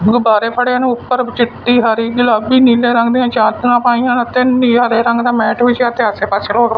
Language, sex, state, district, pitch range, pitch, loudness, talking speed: Punjabi, male, Punjab, Fazilka, 230-245 Hz, 240 Hz, -12 LUFS, 205 wpm